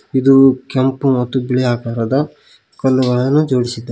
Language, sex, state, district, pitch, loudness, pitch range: Kannada, male, Karnataka, Koppal, 130 Hz, -15 LUFS, 125-135 Hz